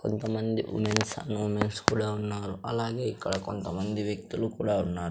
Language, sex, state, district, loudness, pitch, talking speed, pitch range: Telugu, female, Andhra Pradesh, Sri Satya Sai, -30 LUFS, 105 Hz, 140 wpm, 105-110 Hz